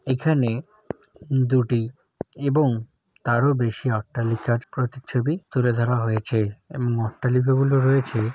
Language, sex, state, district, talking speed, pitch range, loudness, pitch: Bengali, male, West Bengal, Jalpaiguri, 95 wpm, 115-135 Hz, -23 LUFS, 125 Hz